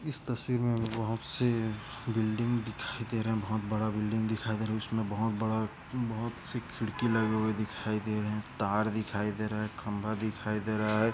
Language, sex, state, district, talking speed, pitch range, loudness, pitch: Hindi, male, Maharashtra, Aurangabad, 210 wpm, 110-115 Hz, -33 LUFS, 110 Hz